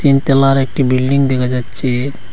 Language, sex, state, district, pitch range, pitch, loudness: Bengali, male, Assam, Hailakandi, 125-135 Hz, 130 Hz, -14 LUFS